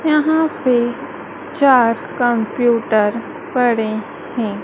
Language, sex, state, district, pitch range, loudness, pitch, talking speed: Hindi, female, Madhya Pradesh, Dhar, 225-285 Hz, -17 LUFS, 240 Hz, 80 wpm